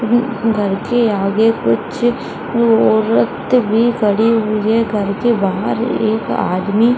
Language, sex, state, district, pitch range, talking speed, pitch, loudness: Hindi, female, Bihar, Saran, 200-235 Hz, 140 wpm, 220 Hz, -15 LUFS